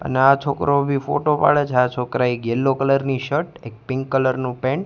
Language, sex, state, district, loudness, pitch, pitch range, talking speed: Gujarati, male, Gujarat, Gandhinagar, -19 LUFS, 135 Hz, 125-140 Hz, 235 wpm